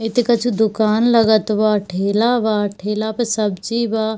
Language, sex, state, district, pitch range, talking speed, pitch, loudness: Hindi, female, Bihar, Darbhanga, 210-230 Hz, 170 wpm, 220 Hz, -17 LUFS